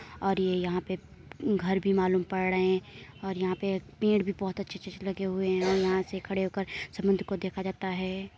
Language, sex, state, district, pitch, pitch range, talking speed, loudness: Hindi, female, Uttar Pradesh, Muzaffarnagar, 190 Hz, 185-195 Hz, 220 wpm, -30 LUFS